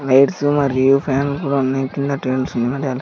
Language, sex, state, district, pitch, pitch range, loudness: Telugu, male, Andhra Pradesh, Sri Satya Sai, 135 Hz, 130-140 Hz, -18 LUFS